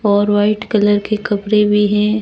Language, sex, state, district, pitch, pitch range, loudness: Hindi, female, Rajasthan, Barmer, 210 Hz, 205-210 Hz, -15 LUFS